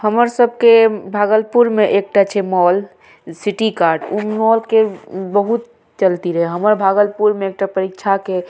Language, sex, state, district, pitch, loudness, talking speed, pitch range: Maithili, female, Bihar, Madhepura, 205 Hz, -15 LUFS, 155 wpm, 190-220 Hz